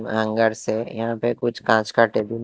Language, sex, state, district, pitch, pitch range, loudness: Hindi, male, Haryana, Jhajjar, 115 Hz, 110-115 Hz, -21 LUFS